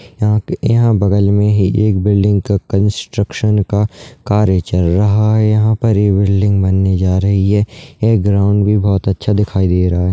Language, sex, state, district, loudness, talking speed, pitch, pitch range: Hindi, male, Uttarakhand, Uttarkashi, -13 LUFS, 195 wpm, 100 Hz, 100-105 Hz